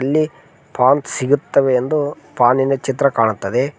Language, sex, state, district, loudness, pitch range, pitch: Kannada, male, Karnataka, Koppal, -17 LUFS, 125-145 Hz, 135 Hz